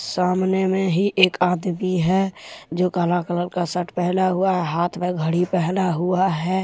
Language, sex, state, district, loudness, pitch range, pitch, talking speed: Hindi, male, Jharkhand, Deoghar, -21 LUFS, 175-185 Hz, 180 Hz, 170 wpm